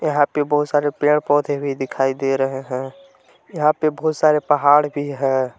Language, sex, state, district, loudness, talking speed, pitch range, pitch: Hindi, male, Jharkhand, Palamu, -19 LUFS, 195 wpm, 135-150 Hz, 145 Hz